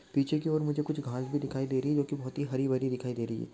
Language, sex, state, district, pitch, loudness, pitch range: Hindi, male, Rajasthan, Churu, 135 Hz, -32 LUFS, 130-145 Hz